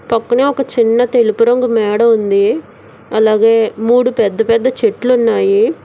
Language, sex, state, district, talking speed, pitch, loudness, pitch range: Telugu, female, Telangana, Hyderabad, 135 wpm, 230 Hz, -13 LUFS, 225-250 Hz